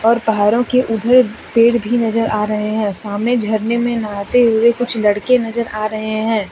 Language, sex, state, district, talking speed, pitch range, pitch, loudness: Hindi, female, Jharkhand, Deoghar, 195 wpm, 215-235 Hz, 225 Hz, -16 LUFS